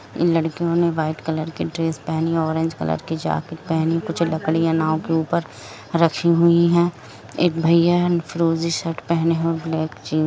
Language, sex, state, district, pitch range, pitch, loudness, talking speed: Hindi, female, Jharkhand, Jamtara, 160-170 Hz, 165 Hz, -20 LUFS, 180 wpm